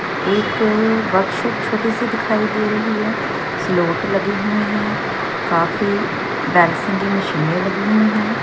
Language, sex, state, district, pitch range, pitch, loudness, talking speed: Hindi, female, Chandigarh, Chandigarh, 195-220 Hz, 210 Hz, -18 LUFS, 115 wpm